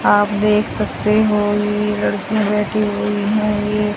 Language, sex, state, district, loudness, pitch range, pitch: Hindi, female, Haryana, Jhajjar, -17 LUFS, 205-210 Hz, 210 Hz